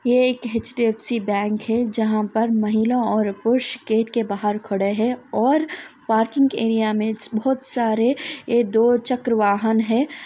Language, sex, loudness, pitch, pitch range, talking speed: Hindi, female, -20 LUFS, 230 Hz, 220-250 Hz, 150 wpm